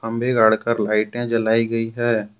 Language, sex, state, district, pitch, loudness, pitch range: Hindi, male, Jharkhand, Deoghar, 115 Hz, -20 LUFS, 110-115 Hz